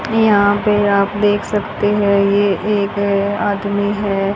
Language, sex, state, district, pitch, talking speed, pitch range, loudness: Hindi, female, Haryana, Charkhi Dadri, 205 Hz, 150 wpm, 200-205 Hz, -15 LUFS